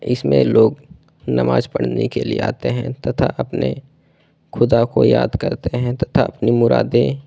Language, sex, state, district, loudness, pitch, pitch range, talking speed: Hindi, male, Delhi, New Delhi, -17 LUFS, 115 Hz, 85-125 Hz, 150 wpm